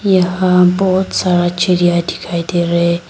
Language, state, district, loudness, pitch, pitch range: Hindi, Arunachal Pradesh, Lower Dibang Valley, -14 LUFS, 180 Hz, 175-185 Hz